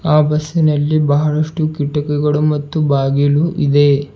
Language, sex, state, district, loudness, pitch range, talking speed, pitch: Kannada, male, Karnataka, Bidar, -15 LUFS, 145-155 Hz, 100 wpm, 150 Hz